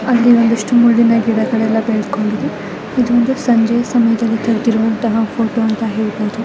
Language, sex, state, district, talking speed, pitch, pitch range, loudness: Kannada, female, Karnataka, Mysore, 130 wpm, 230 Hz, 220-235 Hz, -14 LUFS